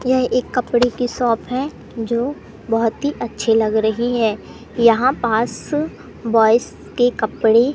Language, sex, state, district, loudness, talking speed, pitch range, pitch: Hindi, male, Madhya Pradesh, Katni, -18 LUFS, 140 wpm, 225-250 Hz, 240 Hz